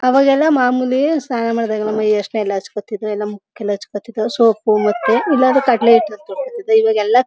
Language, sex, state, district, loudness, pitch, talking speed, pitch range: Kannada, male, Karnataka, Mysore, -16 LUFS, 230 Hz, 175 wpm, 210-255 Hz